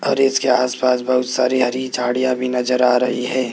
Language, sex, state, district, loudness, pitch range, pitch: Hindi, male, Rajasthan, Jaipur, -18 LUFS, 125-130 Hz, 125 Hz